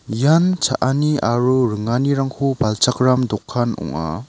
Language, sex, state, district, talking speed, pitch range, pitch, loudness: Garo, male, Meghalaya, South Garo Hills, 100 wpm, 115-140 Hz, 125 Hz, -18 LUFS